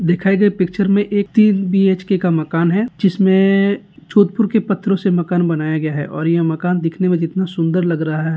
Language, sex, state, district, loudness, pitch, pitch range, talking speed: Hindi, male, Rajasthan, Nagaur, -16 LUFS, 185 Hz, 165-200 Hz, 200 wpm